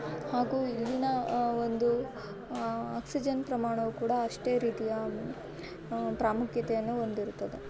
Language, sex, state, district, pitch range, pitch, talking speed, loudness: Kannada, female, Karnataka, Mysore, 225-245 Hz, 235 Hz, 110 wpm, -32 LUFS